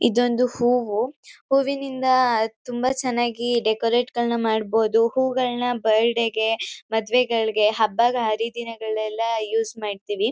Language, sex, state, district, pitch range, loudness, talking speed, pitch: Kannada, female, Karnataka, Chamarajanagar, 220-245 Hz, -22 LUFS, 80 wpm, 235 Hz